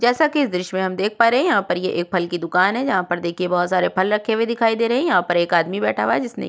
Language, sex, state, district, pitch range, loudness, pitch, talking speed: Hindi, female, Uttarakhand, Tehri Garhwal, 175-230 Hz, -19 LUFS, 185 Hz, 325 wpm